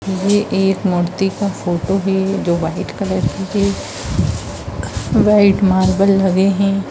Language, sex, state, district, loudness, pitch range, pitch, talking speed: Hindi, female, Bihar, Darbhanga, -16 LUFS, 185-195 Hz, 195 Hz, 130 wpm